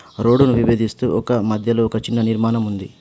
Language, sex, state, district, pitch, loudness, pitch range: Telugu, male, Telangana, Adilabad, 115 Hz, -18 LUFS, 110-120 Hz